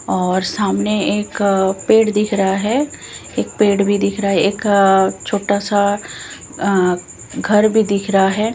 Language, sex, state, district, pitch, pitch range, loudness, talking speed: Hindi, female, Bihar, Katihar, 200 Hz, 195-210 Hz, -16 LUFS, 155 wpm